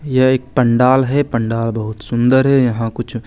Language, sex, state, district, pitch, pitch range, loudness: Hindi, male, Chandigarh, Chandigarh, 120 Hz, 115-130 Hz, -15 LUFS